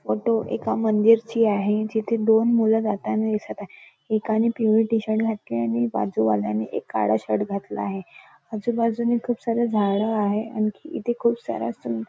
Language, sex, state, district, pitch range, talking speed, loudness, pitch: Marathi, female, Maharashtra, Nagpur, 195-230 Hz, 165 wpm, -23 LUFS, 215 Hz